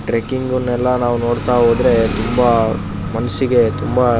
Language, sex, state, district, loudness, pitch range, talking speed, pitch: Kannada, male, Karnataka, Shimoga, -16 LUFS, 115-125 Hz, 100 wpm, 120 Hz